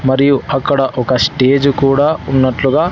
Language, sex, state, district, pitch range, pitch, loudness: Telugu, male, Andhra Pradesh, Sri Satya Sai, 130-140 Hz, 135 Hz, -13 LUFS